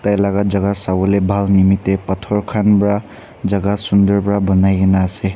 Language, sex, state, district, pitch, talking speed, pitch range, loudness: Nagamese, male, Nagaland, Kohima, 100 Hz, 170 wpm, 95-100 Hz, -15 LUFS